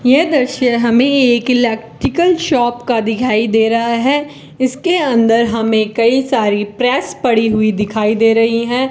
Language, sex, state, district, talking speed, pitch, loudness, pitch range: Hindi, female, Rajasthan, Bikaner, 155 wpm, 235 Hz, -14 LUFS, 225-260 Hz